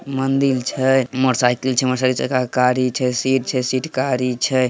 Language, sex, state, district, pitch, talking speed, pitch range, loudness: Hindi, male, Bihar, Samastipur, 130 Hz, 180 wpm, 125-130 Hz, -18 LUFS